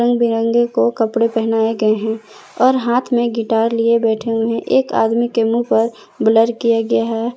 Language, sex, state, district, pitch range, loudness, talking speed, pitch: Hindi, female, Jharkhand, Palamu, 225-235 Hz, -16 LUFS, 180 wpm, 230 Hz